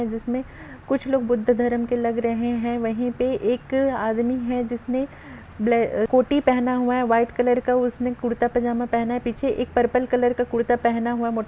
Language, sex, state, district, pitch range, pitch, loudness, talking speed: Hindi, female, Jharkhand, Sahebganj, 235-250 Hz, 245 Hz, -22 LUFS, 190 wpm